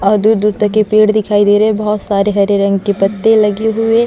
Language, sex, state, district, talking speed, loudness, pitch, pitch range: Hindi, female, Chhattisgarh, Sukma, 280 wpm, -12 LUFS, 210 Hz, 205-215 Hz